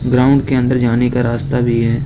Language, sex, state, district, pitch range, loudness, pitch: Hindi, male, Uttar Pradesh, Lucknow, 120-130 Hz, -14 LUFS, 125 Hz